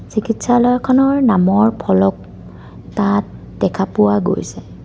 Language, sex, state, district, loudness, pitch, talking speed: Assamese, female, Assam, Kamrup Metropolitan, -15 LUFS, 195 Hz, 85 wpm